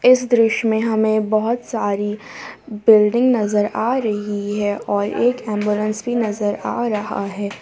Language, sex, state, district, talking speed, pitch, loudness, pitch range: Hindi, female, Jharkhand, Palamu, 150 wpm, 215 Hz, -19 LUFS, 205-230 Hz